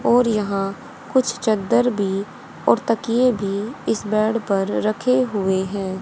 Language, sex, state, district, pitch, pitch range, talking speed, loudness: Hindi, female, Haryana, Rohtak, 215 Hz, 195-240 Hz, 140 wpm, -20 LUFS